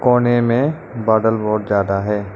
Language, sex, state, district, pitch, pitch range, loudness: Hindi, male, Arunachal Pradesh, Lower Dibang Valley, 110 Hz, 105-120 Hz, -17 LUFS